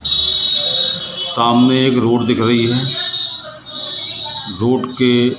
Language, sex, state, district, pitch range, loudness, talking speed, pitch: Hindi, male, Madhya Pradesh, Katni, 115-130 Hz, -15 LUFS, 90 wpm, 120 Hz